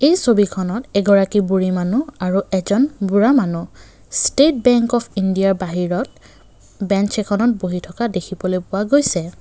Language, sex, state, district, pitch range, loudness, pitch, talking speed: Assamese, male, Assam, Kamrup Metropolitan, 185-235 Hz, -18 LUFS, 200 Hz, 135 wpm